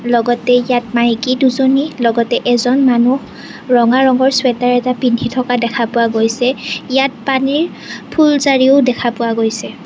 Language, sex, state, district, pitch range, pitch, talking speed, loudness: Assamese, female, Assam, Kamrup Metropolitan, 235-265 Hz, 245 Hz, 135 wpm, -13 LUFS